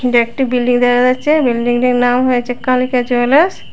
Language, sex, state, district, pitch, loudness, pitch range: Bengali, female, Tripura, West Tripura, 245 Hz, -13 LUFS, 245-255 Hz